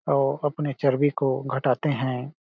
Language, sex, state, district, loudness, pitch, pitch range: Hindi, male, Chhattisgarh, Balrampur, -25 LUFS, 140 Hz, 130-145 Hz